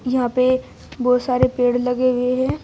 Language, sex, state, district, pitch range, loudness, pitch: Hindi, female, Uttar Pradesh, Shamli, 250-255 Hz, -19 LUFS, 250 Hz